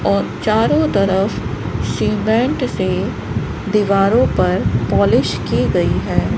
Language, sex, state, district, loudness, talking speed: Hindi, female, Rajasthan, Bikaner, -17 LUFS, 105 wpm